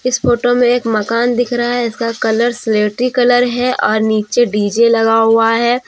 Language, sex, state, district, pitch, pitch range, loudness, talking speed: Hindi, female, Jharkhand, Deoghar, 235 Hz, 225-245 Hz, -13 LUFS, 195 wpm